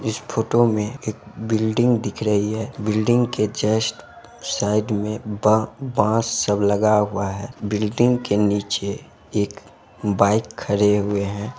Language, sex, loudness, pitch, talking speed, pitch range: Bhojpuri, male, -21 LUFS, 105 Hz, 135 wpm, 105-110 Hz